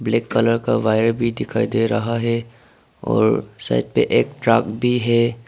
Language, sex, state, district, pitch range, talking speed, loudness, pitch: Hindi, male, Arunachal Pradesh, Papum Pare, 110-115 Hz, 175 wpm, -19 LUFS, 115 Hz